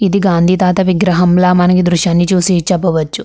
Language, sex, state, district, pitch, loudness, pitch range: Telugu, female, Andhra Pradesh, Krishna, 180 Hz, -11 LUFS, 175-185 Hz